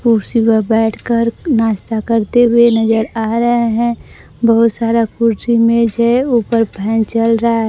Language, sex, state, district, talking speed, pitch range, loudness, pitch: Hindi, female, Bihar, Kaimur, 155 wpm, 225-235 Hz, -14 LUFS, 230 Hz